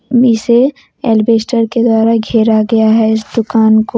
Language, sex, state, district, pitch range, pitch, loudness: Hindi, female, Jharkhand, Deoghar, 220-235 Hz, 225 Hz, -11 LUFS